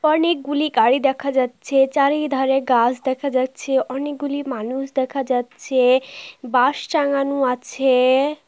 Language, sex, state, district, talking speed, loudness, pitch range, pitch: Bengali, female, West Bengal, North 24 Parganas, 105 wpm, -19 LUFS, 255-280 Hz, 270 Hz